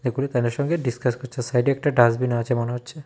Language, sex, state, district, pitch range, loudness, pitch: Bengali, male, Tripura, West Tripura, 120-140 Hz, -22 LUFS, 125 Hz